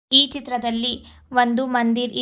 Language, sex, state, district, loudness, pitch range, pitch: Kannada, female, Karnataka, Bidar, -20 LUFS, 240-260 Hz, 245 Hz